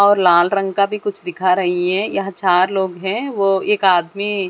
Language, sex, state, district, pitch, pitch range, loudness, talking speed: Hindi, female, Chandigarh, Chandigarh, 195 Hz, 180-200 Hz, -17 LUFS, 215 wpm